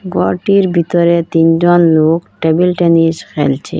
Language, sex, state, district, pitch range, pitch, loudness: Bengali, female, Assam, Hailakandi, 165-175 Hz, 170 Hz, -12 LUFS